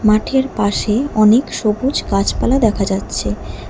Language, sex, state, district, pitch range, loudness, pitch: Bengali, female, West Bengal, Alipurduar, 195-240 Hz, -16 LUFS, 215 Hz